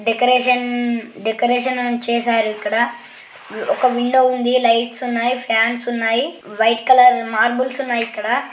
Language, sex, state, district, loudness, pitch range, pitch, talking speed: Telugu, female, Andhra Pradesh, Guntur, -17 LUFS, 230-250 Hz, 240 Hz, 115 wpm